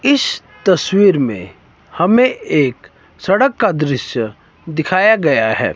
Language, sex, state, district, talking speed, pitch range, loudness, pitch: Hindi, male, Himachal Pradesh, Shimla, 115 wpm, 135-220 Hz, -15 LUFS, 165 Hz